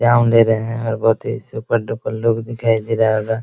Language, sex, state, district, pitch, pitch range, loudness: Hindi, male, Bihar, Araria, 115 Hz, 110-115 Hz, -17 LUFS